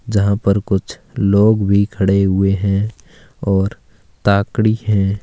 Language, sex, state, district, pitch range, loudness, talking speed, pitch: Hindi, male, Bihar, Gaya, 95-105 Hz, -16 LUFS, 140 wpm, 100 Hz